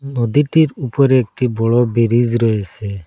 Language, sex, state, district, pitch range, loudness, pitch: Bengali, male, Assam, Hailakandi, 115-135 Hz, -15 LUFS, 120 Hz